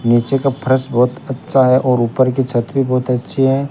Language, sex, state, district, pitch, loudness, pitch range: Hindi, male, Rajasthan, Bikaner, 130 Hz, -15 LUFS, 125-135 Hz